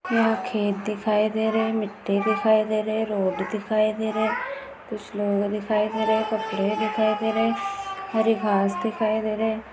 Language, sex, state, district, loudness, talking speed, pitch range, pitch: Hindi, female, Maharashtra, Sindhudurg, -24 LUFS, 160 wpm, 210-220 Hz, 215 Hz